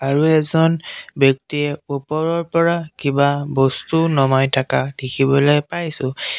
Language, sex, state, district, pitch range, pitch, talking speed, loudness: Assamese, male, Assam, Sonitpur, 135-160 Hz, 145 Hz, 105 wpm, -18 LUFS